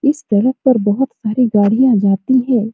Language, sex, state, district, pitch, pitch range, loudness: Hindi, female, Bihar, Supaul, 245 Hz, 210-260 Hz, -14 LUFS